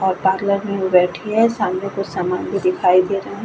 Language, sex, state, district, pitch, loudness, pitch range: Hindi, female, Bihar, Vaishali, 195 Hz, -18 LUFS, 185-200 Hz